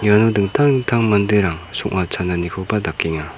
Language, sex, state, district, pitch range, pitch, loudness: Garo, male, Meghalaya, South Garo Hills, 90-105 Hz, 100 Hz, -18 LUFS